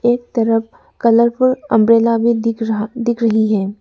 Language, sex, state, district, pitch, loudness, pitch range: Hindi, female, Arunachal Pradesh, Lower Dibang Valley, 230 Hz, -15 LUFS, 225-235 Hz